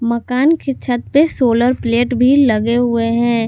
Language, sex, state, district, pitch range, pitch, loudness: Hindi, female, Jharkhand, Garhwa, 235-260 Hz, 245 Hz, -14 LUFS